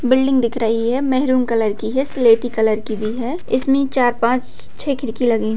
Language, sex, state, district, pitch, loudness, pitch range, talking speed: Hindi, female, Bihar, Bhagalpur, 245 Hz, -18 LUFS, 225-260 Hz, 215 wpm